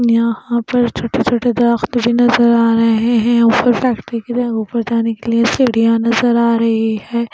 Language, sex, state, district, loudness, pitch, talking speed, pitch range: Hindi, female, Punjab, Pathankot, -14 LUFS, 235 Hz, 180 wpm, 230-240 Hz